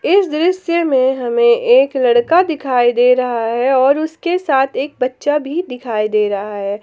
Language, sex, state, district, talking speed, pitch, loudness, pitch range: Hindi, female, Jharkhand, Palamu, 175 wpm, 265 Hz, -15 LUFS, 240-330 Hz